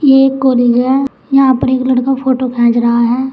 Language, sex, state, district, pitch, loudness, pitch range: Hindi, female, Uttar Pradesh, Saharanpur, 260 Hz, -12 LUFS, 245-270 Hz